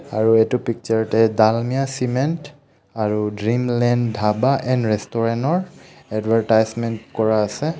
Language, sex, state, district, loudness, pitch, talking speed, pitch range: Assamese, male, Assam, Kamrup Metropolitan, -20 LUFS, 115 Hz, 115 wpm, 110-125 Hz